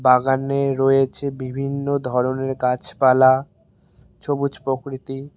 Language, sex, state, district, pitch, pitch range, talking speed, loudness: Bengali, male, West Bengal, Cooch Behar, 135 Hz, 130-140 Hz, 80 wpm, -20 LUFS